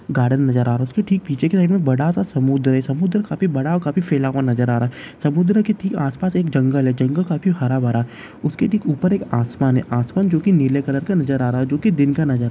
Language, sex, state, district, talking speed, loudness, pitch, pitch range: Hindi, male, Bihar, Darbhanga, 265 wpm, -19 LUFS, 140 Hz, 130-185 Hz